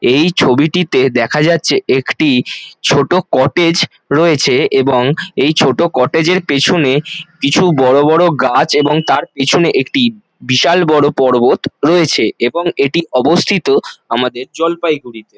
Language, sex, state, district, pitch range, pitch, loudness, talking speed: Bengali, male, West Bengal, Jalpaiguri, 135-175 Hz, 160 Hz, -12 LUFS, 120 wpm